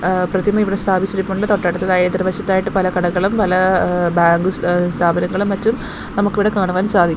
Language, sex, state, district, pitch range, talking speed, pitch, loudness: Malayalam, female, Kerala, Thiruvananthapuram, 180-200 Hz, 140 wpm, 185 Hz, -16 LUFS